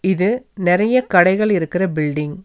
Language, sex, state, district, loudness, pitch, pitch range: Tamil, female, Tamil Nadu, Nilgiris, -17 LUFS, 185 Hz, 175-205 Hz